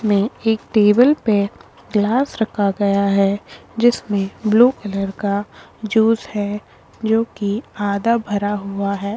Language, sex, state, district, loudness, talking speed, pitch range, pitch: Hindi, female, Chhattisgarh, Korba, -18 LUFS, 130 wpm, 200-225 Hz, 210 Hz